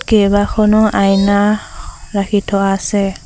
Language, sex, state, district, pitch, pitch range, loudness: Assamese, female, Assam, Sonitpur, 200 Hz, 195-210 Hz, -14 LUFS